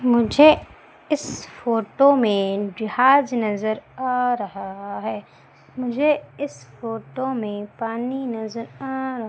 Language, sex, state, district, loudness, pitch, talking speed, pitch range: Hindi, female, Madhya Pradesh, Umaria, -22 LUFS, 240 Hz, 110 wpm, 220-265 Hz